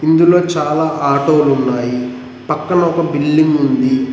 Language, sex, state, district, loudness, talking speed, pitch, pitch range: Telugu, male, Telangana, Mahabubabad, -14 LUFS, 130 wpm, 150 Hz, 130-160 Hz